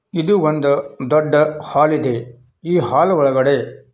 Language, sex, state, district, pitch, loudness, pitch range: Kannada, male, Karnataka, Belgaum, 150 Hz, -17 LUFS, 130-155 Hz